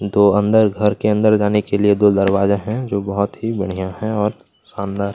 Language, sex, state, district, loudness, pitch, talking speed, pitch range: Hindi, male, Chhattisgarh, Kabirdham, -17 LUFS, 105 Hz, 220 wpm, 100-105 Hz